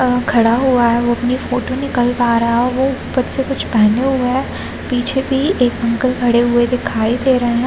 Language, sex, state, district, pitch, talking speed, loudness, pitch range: Hindi, female, Chhattisgarh, Balrampur, 245 Hz, 220 wpm, -15 LUFS, 240-260 Hz